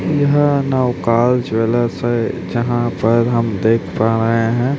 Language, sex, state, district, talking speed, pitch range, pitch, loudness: Hindi, male, Chhattisgarh, Raipur, 140 wpm, 115-125 Hz, 120 Hz, -16 LUFS